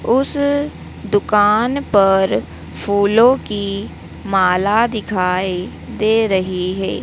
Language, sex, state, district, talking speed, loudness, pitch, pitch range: Hindi, female, Madhya Pradesh, Dhar, 85 wpm, -16 LUFS, 205 Hz, 185-225 Hz